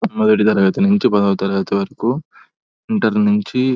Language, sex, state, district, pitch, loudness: Telugu, male, Telangana, Nalgonda, 110 Hz, -16 LUFS